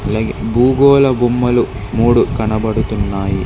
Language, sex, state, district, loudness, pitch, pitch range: Telugu, male, Telangana, Hyderabad, -14 LUFS, 115 Hz, 110-120 Hz